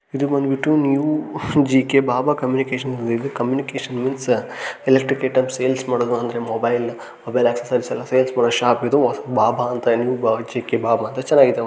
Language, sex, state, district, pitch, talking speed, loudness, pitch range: Kannada, male, Karnataka, Gulbarga, 130 Hz, 155 wpm, -19 LUFS, 120-135 Hz